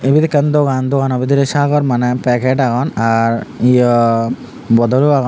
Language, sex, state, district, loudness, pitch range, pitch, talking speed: Chakma, male, Tripura, Unakoti, -14 LUFS, 120-140 Hz, 130 Hz, 145 wpm